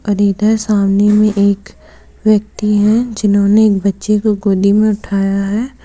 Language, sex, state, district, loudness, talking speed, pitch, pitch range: Hindi, female, Jharkhand, Deoghar, -13 LUFS, 145 wpm, 210 Hz, 200-215 Hz